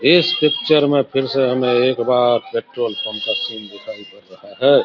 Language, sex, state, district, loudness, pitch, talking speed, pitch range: Hindi, male, Bihar, Samastipur, -17 LUFS, 125 Hz, 200 wpm, 110-135 Hz